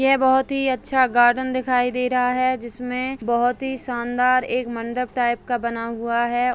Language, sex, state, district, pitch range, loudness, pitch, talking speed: Hindi, female, Bihar, Begusarai, 240-255 Hz, -21 LUFS, 250 Hz, 185 wpm